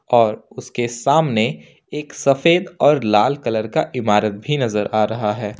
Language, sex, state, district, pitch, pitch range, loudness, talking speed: Hindi, male, Jharkhand, Ranchi, 120 Hz, 105-145 Hz, -18 LUFS, 160 wpm